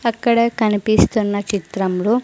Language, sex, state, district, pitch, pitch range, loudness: Telugu, female, Andhra Pradesh, Sri Satya Sai, 215 Hz, 205-235 Hz, -18 LUFS